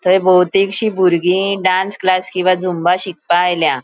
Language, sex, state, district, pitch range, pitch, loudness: Konkani, female, Goa, North and South Goa, 180-190 Hz, 185 Hz, -15 LUFS